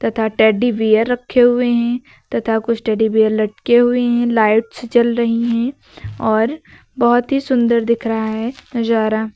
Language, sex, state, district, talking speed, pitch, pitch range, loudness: Hindi, female, Uttar Pradesh, Lucknow, 160 wpm, 235 Hz, 220-240 Hz, -16 LUFS